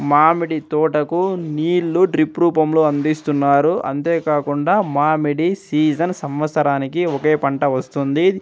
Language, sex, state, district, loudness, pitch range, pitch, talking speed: Telugu, male, Andhra Pradesh, Anantapur, -18 LUFS, 145-170 Hz, 155 Hz, 100 wpm